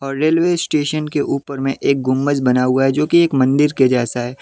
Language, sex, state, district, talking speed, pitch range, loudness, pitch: Hindi, male, Jharkhand, Deoghar, 230 wpm, 130-150 Hz, -16 LUFS, 140 Hz